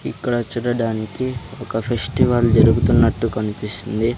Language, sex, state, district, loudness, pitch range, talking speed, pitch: Telugu, male, Andhra Pradesh, Sri Satya Sai, -19 LUFS, 110-120 Hz, 85 wpm, 115 Hz